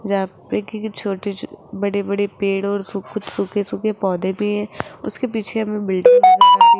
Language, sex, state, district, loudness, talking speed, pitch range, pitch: Hindi, female, Rajasthan, Jaipur, -19 LUFS, 210 wpm, 195-220 Hz, 205 Hz